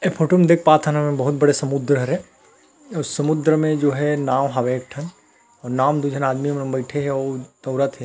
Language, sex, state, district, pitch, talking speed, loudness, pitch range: Chhattisgarhi, male, Chhattisgarh, Rajnandgaon, 145 Hz, 225 wpm, -20 LUFS, 135-155 Hz